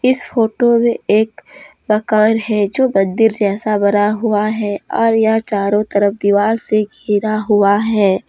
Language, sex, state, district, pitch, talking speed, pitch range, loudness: Hindi, female, Jharkhand, Deoghar, 215 Hz, 150 wpm, 205-225 Hz, -15 LUFS